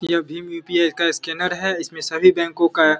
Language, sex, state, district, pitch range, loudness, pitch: Hindi, male, Bihar, Samastipur, 160-175 Hz, -19 LUFS, 170 Hz